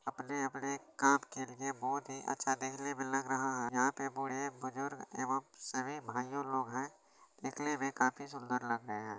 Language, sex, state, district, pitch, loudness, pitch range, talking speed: Maithili, male, Bihar, Supaul, 135 Hz, -38 LUFS, 130-140 Hz, 185 wpm